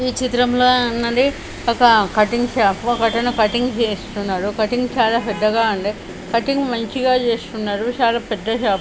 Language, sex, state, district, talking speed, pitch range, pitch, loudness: Telugu, male, Karnataka, Bellary, 150 wpm, 215-245 Hz, 235 Hz, -18 LUFS